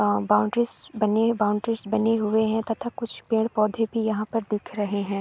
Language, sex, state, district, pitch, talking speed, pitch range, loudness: Hindi, female, Bihar, East Champaran, 220 Hz, 195 wpm, 210-225 Hz, -25 LUFS